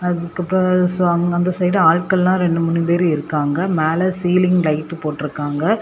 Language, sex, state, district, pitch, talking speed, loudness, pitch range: Tamil, female, Tamil Nadu, Kanyakumari, 175 Hz, 135 wpm, -17 LUFS, 160-180 Hz